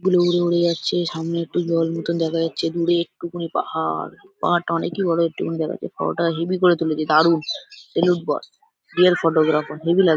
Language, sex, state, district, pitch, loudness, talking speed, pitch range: Bengali, male, West Bengal, Dakshin Dinajpur, 170 Hz, -21 LUFS, 185 wpm, 165-175 Hz